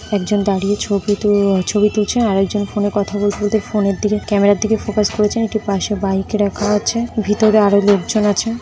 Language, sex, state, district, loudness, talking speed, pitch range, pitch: Bengali, female, West Bengal, North 24 Parganas, -16 LUFS, 200 wpm, 200-215 Hz, 205 Hz